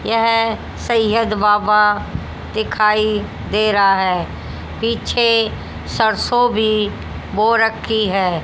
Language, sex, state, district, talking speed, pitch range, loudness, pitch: Hindi, female, Haryana, Jhajjar, 90 wpm, 210-225 Hz, -16 LUFS, 215 Hz